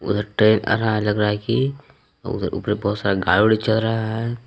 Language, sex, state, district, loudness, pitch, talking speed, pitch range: Hindi, male, Jharkhand, Palamu, -20 LUFS, 110 Hz, 240 wpm, 105-115 Hz